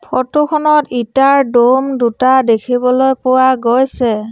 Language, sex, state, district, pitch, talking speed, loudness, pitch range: Assamese, female, Assam, Sonitpur, 255 Hz, 110 wpm, -12 LUFS, 240-270 Hz